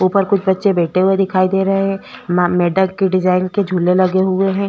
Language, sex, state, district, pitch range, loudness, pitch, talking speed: Hindi, female, Chhattisgarh, Korba, 185-195 Hz, -15 LUFS, 190 Hz, 220 wpm